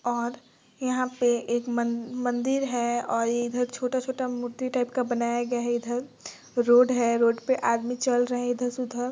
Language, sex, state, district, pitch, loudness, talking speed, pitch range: Hindi, female, Bihar, Gopalganj, 245 Hz, -26 LUFS, 190 wpm, 240-250 Hz